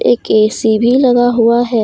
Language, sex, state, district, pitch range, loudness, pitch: Hindi, female, Jharkhand, Deoghar, 225-245 Hz, -11 LUFS, 235 Hz